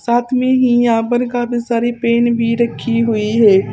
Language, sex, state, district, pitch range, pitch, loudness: Hindi, female, Uttar Pradesh, Saharanpur, 230-240 Hz, 235 Hz, -15 LUFS